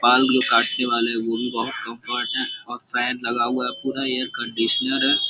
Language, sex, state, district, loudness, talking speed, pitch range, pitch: Hindi, male, Uttar Pradesh, Gorakhpur, -20 LUFS, 205 wpm, 120-130 Hz, 125 Hz